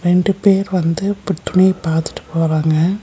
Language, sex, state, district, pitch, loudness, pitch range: Tamil, female, Tamil Nadu, Nilgiris, 180 Hz, -16 LUFS, 165-195 Hz